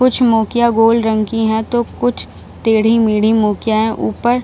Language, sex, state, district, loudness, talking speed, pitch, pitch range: Hindi, female, Bihar, Jahanabad, -14 LUFS, 175 wpm, 225 Hz, 220-240 Hz